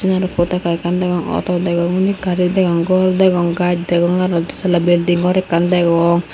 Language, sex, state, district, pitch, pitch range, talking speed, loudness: Chakma, female, Tripura, Unakoti, 175 Hz, 170-185 Hz, 190 wpm, -15 LUFS